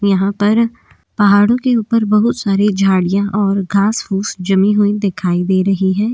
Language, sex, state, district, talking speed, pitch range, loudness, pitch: Hindi, female, Uttarakhand, Tehri Garhwal, 165 wpm, 195-210 Hz, -14 LUFS, 200 Hz